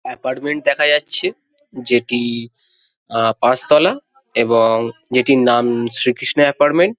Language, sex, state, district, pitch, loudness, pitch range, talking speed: Bengali, male, West Bengal, Jhargram, 130 Hz, -16 LUFS, 120-160 Hz, 110 wpm